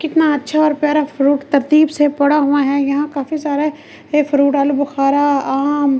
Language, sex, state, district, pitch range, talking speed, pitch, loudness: Hindi, female, Delhi, New Delhi, 280-300 Hz, 190 wpm, 290 Hz, -15 LUFS